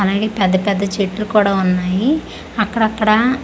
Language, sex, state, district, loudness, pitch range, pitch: Telugu, female, Andhra Pradesh, Manyam, -16 LUFS, 195-220 Hz, 210 Hz